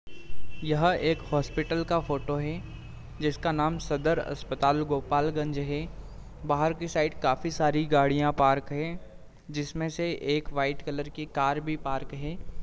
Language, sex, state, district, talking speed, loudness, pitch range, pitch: Hindi, male, Uttar Pradesh, Deoria, 145 wpm, -29 LUFS, 140-155 Hz, 150 Hz